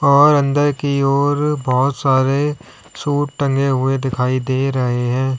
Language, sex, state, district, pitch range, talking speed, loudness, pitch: Hindi, male, Uttar Pradesh, Lalitpur, 130-145 Hz, 145 wpm, -17 LUFS, 135 Hz